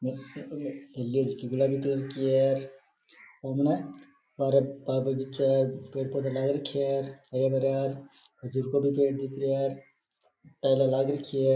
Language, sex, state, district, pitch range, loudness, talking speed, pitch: Rajasthani, male, Rajasthan, Nagaur, 135-140 Hz, -29 LUFS, 95 wpm, 135 Hz